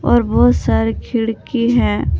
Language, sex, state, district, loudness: Hindi, male, Jharkhand, Palamu, -16 LUFS